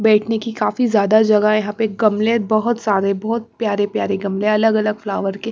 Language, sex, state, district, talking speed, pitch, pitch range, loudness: Hindi, female, Bihar, Patna, 175 wpm, 215 Hz, 205-225 Hz, -17 LUFS